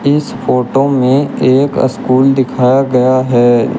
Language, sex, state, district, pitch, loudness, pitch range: Hindi, male, Uttar Pradesh, Shamli, 130 Hz, -11 LUFS, 125-135 Hz